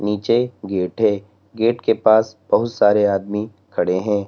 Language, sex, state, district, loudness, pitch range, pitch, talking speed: Hindi, male, Uttar Pradesh, Lalitpur, -19 LUFS, 100-110 Hz, 105 Hz, 155 wpm